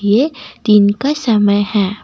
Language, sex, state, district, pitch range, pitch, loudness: Hindi, female, Assam, Kamrup Metropolitan, 205-240 Hz, 210 Hz, -14 LUFS